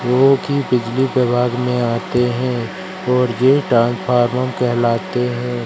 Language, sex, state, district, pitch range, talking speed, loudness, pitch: Hindi, female, Madhya Pradesh, Katni, 120-130 Hz, 125 wpm, -17 LUFS, 125 Hz